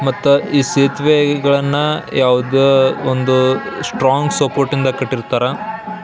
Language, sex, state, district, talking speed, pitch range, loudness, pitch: Kannada, male, Karnataka, Belgaum, 100 wpm, 130-145 Hz, -15 LUFS, 140 Hz